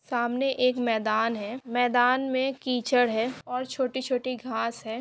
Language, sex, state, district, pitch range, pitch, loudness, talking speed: Hindi, female, Chhattisgarh, Korba, 230-255 Hz, 250 Hz, -27 LUFS, 145 wpm